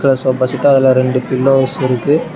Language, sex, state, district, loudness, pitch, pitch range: Tamil, male, Tamil Nadu, Namakkal, -13 LUFS, 130 Hz, 130-140 Hz